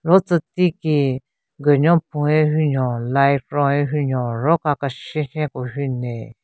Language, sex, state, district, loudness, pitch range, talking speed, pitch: Rengma, female, Nagaland, Kohima, -19 LUFS, 130-155 Hz, 175 wpm, 145 Hz